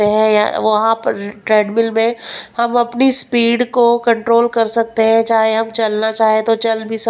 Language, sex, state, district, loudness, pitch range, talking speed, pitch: Hindi, female, Punjab, Pathankot, -14 LUFS, 220-235 Hz, 170 wpm, 225 Hz